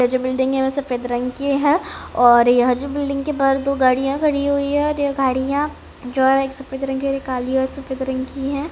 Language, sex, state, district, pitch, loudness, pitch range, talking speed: Hindi, female, Rajasthan, Churu, 270 Hz, -19 LUFS, 260-280 Hz, 250 wpm